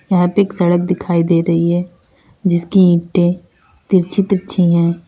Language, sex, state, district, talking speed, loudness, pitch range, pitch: Hindi, female, Uttar Pradesh, Lalitpur, 155 wpm, -15 LUFS, 170-185 Hz, 175 Hz